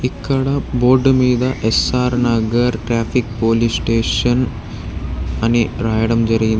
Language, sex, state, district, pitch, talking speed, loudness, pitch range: Telugu, male, Telangana, Hyderabad, 115 Hz, 110 wpm, -16 LUFS, 110-125 Hz